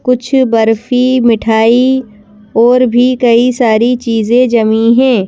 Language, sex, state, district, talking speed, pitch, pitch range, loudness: Hindi, female, Madhya Pradesh, Bhopal, 115 wpm, 235 Hz, 225-250 Hz, -10 LUFS